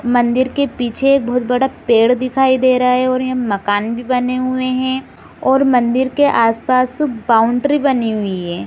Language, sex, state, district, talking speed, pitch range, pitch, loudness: Hindi, female, Chhattisgarh, Bilaspur, 180 wpm, 235-260 Hz, 255 Hz, -15 LUFS